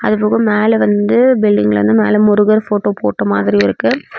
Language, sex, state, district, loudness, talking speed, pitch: Tamil, female, Tamil Nadu, Namakkal, -12 LUFS, 170 wpm, 210 Hz